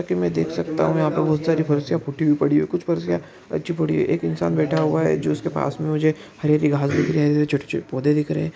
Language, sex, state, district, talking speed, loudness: Maithili, male, Bihar, Araria, 295 wpm, -21 LUFS